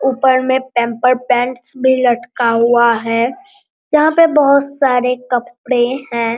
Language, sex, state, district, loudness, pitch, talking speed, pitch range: Hindi, male, Bihar, Araria, -14 LUFS, 250 Hz, 130 wpm, 240-265 Hz